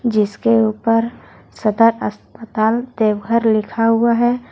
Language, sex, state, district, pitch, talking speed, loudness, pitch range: Hindi, female, Jharkhand, Deoghar, 225 Hz, 105 wpm, -17 LUFS, 215-230 Hz